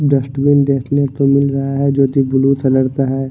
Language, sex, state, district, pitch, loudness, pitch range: Hindi, male, Bihar, Katihar, 135 Hz, -14 LUFS, 135-140 Hz